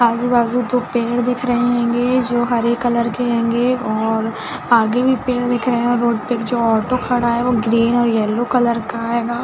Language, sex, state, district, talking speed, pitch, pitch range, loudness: Hindi, female, Chhattisgarh, Bilaspur, 205 wpm, 240 Hz, 235-245 Hz, -17 LUFS